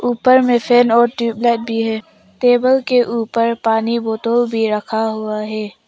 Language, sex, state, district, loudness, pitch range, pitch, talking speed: Hindi, female, Arunachal Pradesh, Papum Pare, -16 LUFS, 220-240 Hz, 230 Hz, 175 wpm